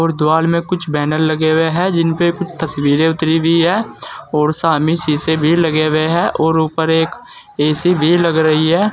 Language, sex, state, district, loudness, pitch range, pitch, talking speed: Hindi, male, Uttar Pradesh, Saharanpur, -15 LUFS, 155-170 Hz, 160 Hz, 195 wpm